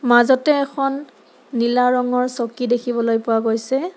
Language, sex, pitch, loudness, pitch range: Assamese, female, 250 Hz, -19 LUFS, 235-275 Hz